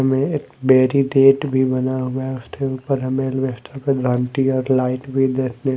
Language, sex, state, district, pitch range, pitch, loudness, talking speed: Hindi, male, Odisha, Malkangiri, 130-135 Hz, 130 Hz, -19 LUFS, 145 wpm